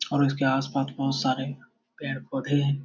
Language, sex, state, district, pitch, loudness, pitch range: Hindi, male, Bihar, Jamui, 135 Hz, -27 LUFS, 135-140 Hz